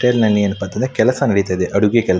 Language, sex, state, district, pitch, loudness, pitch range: Kannada, male, Karnataka, Mysore, 105 Hz, -16 LUFS, 100-120 Hz